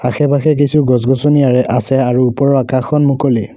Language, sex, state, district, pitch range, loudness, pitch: Assamese, male, Assam, Kamrup Metropolitan, 125-145 Hz, -12 LUFS, 130 Hz